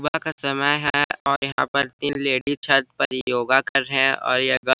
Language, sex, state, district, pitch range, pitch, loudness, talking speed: Hindi, male, Chhattisgarh, Bilaspur, 130-145 Hz, 140 Hz, -21 LUFS, 215 wpm